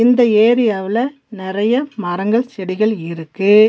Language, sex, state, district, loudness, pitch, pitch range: Tamil, female, Tamil Nadu, Nilgiris, -16 LUFS, 215 Hz, 190-235 Hz